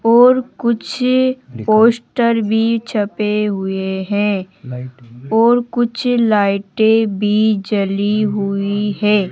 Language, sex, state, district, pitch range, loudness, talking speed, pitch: Hindi, male, Rajasthan, Jaipur, 200-230 Hz, -16 LUFS, 90 wpm, 210 Hz